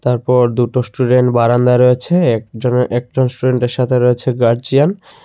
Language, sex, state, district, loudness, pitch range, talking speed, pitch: Bengali, male, Tripura, Unakoti, -14 LUFS, 120-130 Hz, 150 wpm, 125 Hz